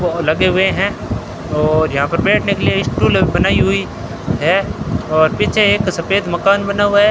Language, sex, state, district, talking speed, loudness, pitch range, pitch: Hindi, male, Rajasthan, Bikaner, 175 wpm, -15 LUFS, 155-200 Hz, 180 Hz